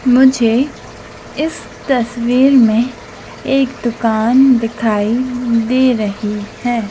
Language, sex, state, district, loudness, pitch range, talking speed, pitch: Hindi, female, Madhya Pradesh, Dhar, -14 LUFS, 225-260 Hz, 85 wpm, 240 Hz